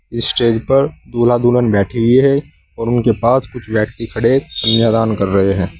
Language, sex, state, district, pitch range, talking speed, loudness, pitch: Hindi, male, Uttar Pradesh, Saharanpur, 110-120 Hz, 185 wpm, -14 LUFS, 115 Hz